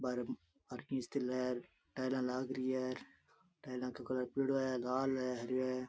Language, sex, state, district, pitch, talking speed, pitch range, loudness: Rajasthani, male, Rajasthan, Churu, 130 Hz, 145 wpm, 125-130 Hz, -39 LUFS